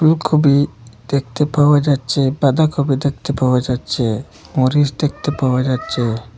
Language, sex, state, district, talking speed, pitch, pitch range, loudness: Bengali, male, Assam, Hailakandi, 115 wpm, 140 Hz, 125-145 Hz, -17 LUFS